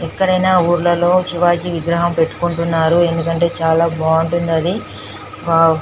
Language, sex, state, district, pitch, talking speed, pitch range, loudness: Telugu, female, Telangana, Nalgonda, 170 Hz, 115 wpm, 165-175 Hz, -15 LUFS